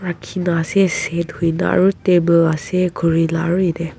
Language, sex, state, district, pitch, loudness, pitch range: Nagamese, female, Nagaland, Kohima, 170 Hz, -17 LUFS, 165-180 Hz